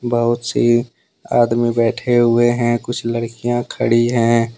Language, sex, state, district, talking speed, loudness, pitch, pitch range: Hindi, male, Jharkhand, Deoghar, 130 wpm, -17 LUFS, 120 Hz, 115-120 Hz